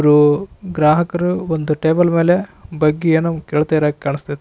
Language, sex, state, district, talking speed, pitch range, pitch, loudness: Kannada, male, Karnataka, Raichur, 165 wpm, 150-170 Hz, 160 Hz, -16 LUFS